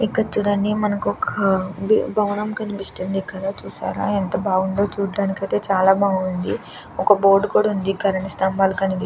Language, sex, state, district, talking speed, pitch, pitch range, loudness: Telugu, female, Andhra Pradesh, Krishna, 145 wpm, 195 Hz, 190-205 Hz, -20 LUFS